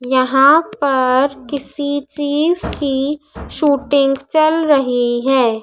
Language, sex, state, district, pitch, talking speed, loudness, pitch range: Hindi, female, Madhya Pradesh, Dhar, 280 Hz, 95 wpm, -15 LUFS, 260-290 Hz